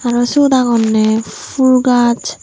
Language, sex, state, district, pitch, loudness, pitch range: Chakma, female, Tripura, Unakoti, 240 Hz, -12 LUFS, 230-255 Hz